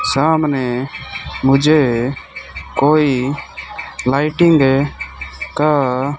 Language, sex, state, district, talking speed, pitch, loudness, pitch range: Hindi, male, Rajasthan, Bikaner, 50 wpm, 135 Hz, -16 LUFS, 125-150 Hz